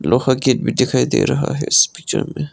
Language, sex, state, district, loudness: Hindi, male, Arunachal Pradesh, Lower Dibang Valley, -17 LUFS